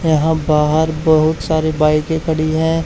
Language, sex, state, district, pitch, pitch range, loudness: Hindi, male, Haryana, Charkhi Dadri, 160 Hz, 155-160 Hz, -15 LUFS